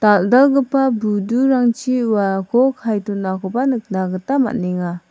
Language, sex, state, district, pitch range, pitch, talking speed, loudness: Garo, female, Meghalaya, South Garo Hills, 195-255 Hz, 225 Hz, 95 wpm, -17 LUFS